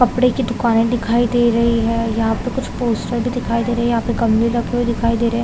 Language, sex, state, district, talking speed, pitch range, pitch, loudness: Hindi, female, Chhattisgarh, Raigarh, 255 wpm, 230-240 Hz, 235 Hz, -18 LUFS